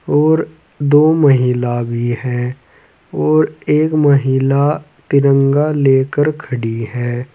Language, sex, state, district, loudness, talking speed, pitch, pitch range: Hindi, male, Uttar Pradesh, Saharanpur, -14 LUFS, 100 wpm, 135 Hz, 125-150 Hz